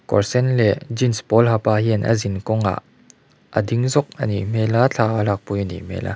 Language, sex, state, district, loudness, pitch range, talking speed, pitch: Mizo, male, Mizoram, Aizawl, -19 LUFS, 100-120 Hz, 245 wpm, 110 Hz